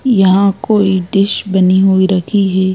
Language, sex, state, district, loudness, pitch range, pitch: Hindi, female, Madhya Pradesh, Bhopal, -12 LUFS, 185-200 Hz, 190 Hz